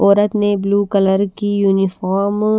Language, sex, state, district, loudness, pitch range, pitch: Hindi, female, Haryana, Rohtak, -16 LUFS, 195-205 Hz, 200 Hz